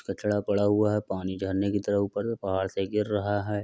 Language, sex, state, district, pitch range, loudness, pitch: Hindi, male, Uttar Pradesh, Budaun, 95-105 Hz, -28 LUFS, 100 Hz